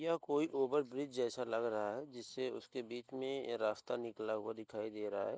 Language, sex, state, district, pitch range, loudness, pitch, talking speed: Hindi, male, Uttar Pradesh, Hamirpur, 110-135 Hz, -40 LUFS, 120 Hz, 200 wpm